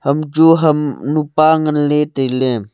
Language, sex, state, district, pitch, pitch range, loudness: Wancho, male, Arunachal Pradesh, Longding, 150 Hz, 135-155 Hz, -14 LUFS